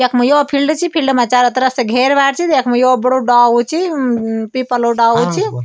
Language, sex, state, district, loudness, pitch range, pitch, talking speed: Garhwali, male, Uttarakhand, Tehri Garhwal, -13 LUFS, 240-275 Hz, 255 Hz, 210 wpm